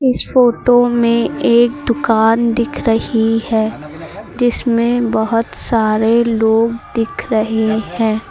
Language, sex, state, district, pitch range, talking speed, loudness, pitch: Hindi, female, Uttar Pradesh, Lucknow, 220-235 Hz, 110 wpm, -14 LUFS, 230 Hz